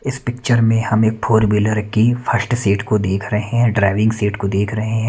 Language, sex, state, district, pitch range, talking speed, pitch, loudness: Hindi, male, Haryana, Charkhi Dadri, 105-120 Hz, 235 wpm, 110 Hz, -17 LUFS